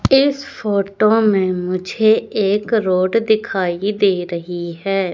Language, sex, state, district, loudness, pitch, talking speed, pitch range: Hindi, female, Madhya Pradesh, Katni, -17 LUFS, 200 Hz, 115 wpm, 185-220 Hz